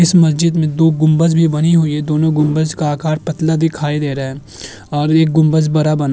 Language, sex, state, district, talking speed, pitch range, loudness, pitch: Hindi, male, Uttar Pradesh, Jyotiba Phule Nagar, 235 wpm, 150-160 Hz, -14 LUFS, 155 Hz